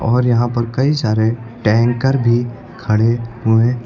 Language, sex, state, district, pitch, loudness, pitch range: Hindi, male, Uttar Pradesh, Lucknow, 120 Hz, -16 LUFS, 115-120 Hz